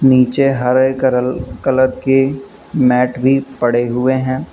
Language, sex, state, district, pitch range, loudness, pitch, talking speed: Hindi, male, Uttar Pradesh, Lucknow, 125-135 Hz, -15 LUFS, 130 Hz, 130 wpm